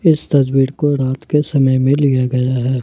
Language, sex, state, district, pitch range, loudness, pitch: Hindi, male, Jharkhand, Ranchi, 130-145 Hz, -15 LUFS, 135 Hz